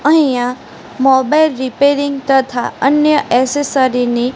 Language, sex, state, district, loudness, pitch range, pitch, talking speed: Gujarati, female, Gujarat, Gandhinagar, -13 LUFS, 255-285 Hz, 270 Hz, 110 wpm